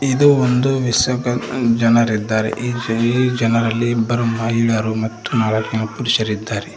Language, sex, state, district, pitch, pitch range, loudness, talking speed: Kannada, male, Karnataka, Koppal, 115 Hz, 110-125 Hz, -17 LUFS, 115 wpm